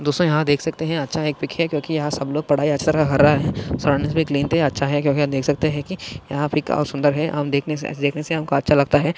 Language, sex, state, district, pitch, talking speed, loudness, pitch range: Hindi, male, Maharashtra, Sindhudurg, 150 Hz, 255 wpm, -20 LUFS, 145-155 Hz